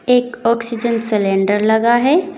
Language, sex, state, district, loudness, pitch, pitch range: Hindi, female, Uttar Pradesh, Saharanpur, -15 LUFS, 235 Hz, 220-245 Hz